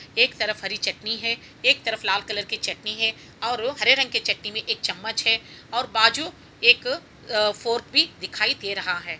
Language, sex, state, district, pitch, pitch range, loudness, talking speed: Hindi, female, Bihar, Saran, 225 Hz, 210-245 Hz, -22 LUFS, 195 wpm